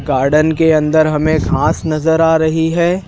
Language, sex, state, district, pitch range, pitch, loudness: Hindi, male, Madhya Pradesh, Dhar, 155-160 Hz, 160 Hz, -13 LUFS